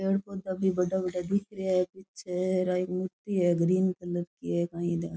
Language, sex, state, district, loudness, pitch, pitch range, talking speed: Rajasthani, female, Rajasthan, Churu, -29 LUFS, 185 Hz, 175-190 Hz, 220 wpm